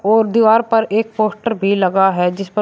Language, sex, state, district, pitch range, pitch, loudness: Hindi, male, Uttar Pradesh, Shamli, 195-225 Hz, 215 Hz, -15 LUFS